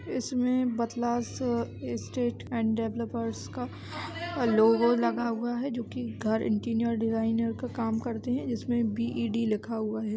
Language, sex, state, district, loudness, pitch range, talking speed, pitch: Hindi, female, Bihar, Samastipur, -29 LUFS, 215-240 Hz, 140 wpm, 230 Hz